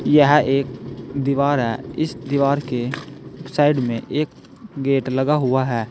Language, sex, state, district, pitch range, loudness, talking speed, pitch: Hindi, male, Uttar Pradesh, Saharanpur, 130-145 Hz, -20 LUFS, 140 wpm, 140 Hz